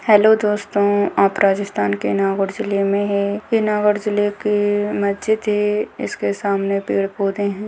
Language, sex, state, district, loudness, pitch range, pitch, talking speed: Hindi, female, Rajasthan, Nagaur, -18 LUFS, 195-210 Hz, 205 Hz, 150 wpm